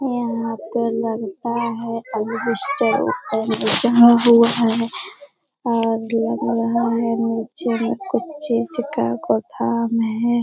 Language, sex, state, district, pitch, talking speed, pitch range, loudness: Hindi, female, Bihar, Lakhisarai, 230 Hz, 100 wpm, 225-235 Hz, -19 LUFS